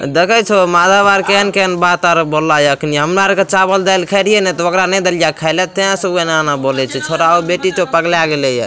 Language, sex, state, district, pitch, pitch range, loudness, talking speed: Maithili, male, Bihar, Madhepura, 175 Hz, 160-195 Hz, -12 LUFS, 220 wpm